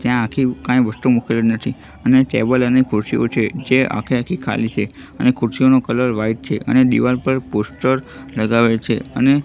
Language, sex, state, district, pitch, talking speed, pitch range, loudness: Gujarati, male, Gujarat, Gandhinagar, 125 Hz, 180 wpm, 115-130 Hz, -17 LUFS